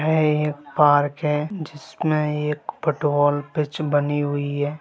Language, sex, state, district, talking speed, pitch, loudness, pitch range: Hindi, male, Bihar, Gaya, 135 wpm, 150 Hz, -22 LUFS, 145-155 Hz